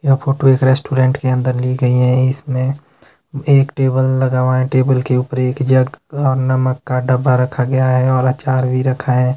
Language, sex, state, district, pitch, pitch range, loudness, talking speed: Hindi, male, Himachal Pradesh, Shimla, 130 Hz, 130-135 Hz, -15 LUFS, 205 wpm